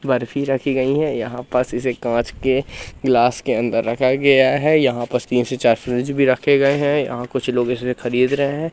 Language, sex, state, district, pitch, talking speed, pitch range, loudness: Hindi, male, Madhya Pradesh, Katni, 130 Hz, 215 wpm, 120-140 Hz, -18 LUFS